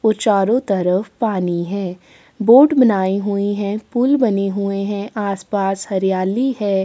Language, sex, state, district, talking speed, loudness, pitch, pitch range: Hindi, female, Chhattisgarh, Sukma, 150 wpm, -17 LUFS, 200 Hz, 195-225 Hz